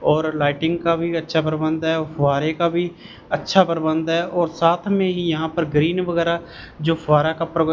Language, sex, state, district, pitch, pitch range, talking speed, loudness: Hindi, male, Punjab, Fazilka, 165 Hz, 155-170 Hz, 195 wpm, -20 LUFS